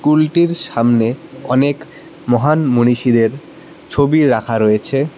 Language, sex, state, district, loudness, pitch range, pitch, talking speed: Bengali, male, West Bengal, Cooch Behar, -15 LUFS, 120-150 Hz, 130 Hz, 95 wpm